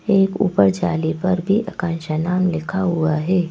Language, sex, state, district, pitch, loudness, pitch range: Hindi, female, Madhya Pradesh, Bhopal, 180 Hz, -19 LUFS, 160-190 Hz